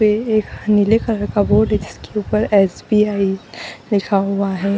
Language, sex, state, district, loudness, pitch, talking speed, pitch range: Hindi, female, Jharkhand, Jamtara, -17 LUFS, 210 Hz, 150 wpm, 200-215 Hz